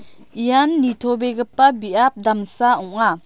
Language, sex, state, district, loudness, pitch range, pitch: Garo, female, Meghalaya, South Garo Hills, -18 LUFS, 220-255 Hz, 245 Hz